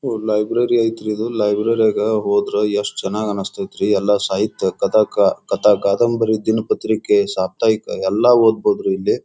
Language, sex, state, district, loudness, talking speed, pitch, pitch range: Kannada, male, Karnataka, Bijapur, -17 LUFS, 145 wpm, 110 Hz, 105-115 Hz